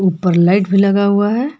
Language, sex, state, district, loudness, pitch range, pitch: Hindi, female, Jharkhand, Palamu, -13 LUFS, 185-205 Hz, 200 Hz